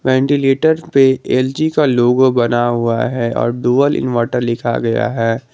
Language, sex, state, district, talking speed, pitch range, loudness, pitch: Hindi, male, Jharkhand, Garhwa, 150 wpm, 120-135 Hz, -15 LUFS, 125 Hz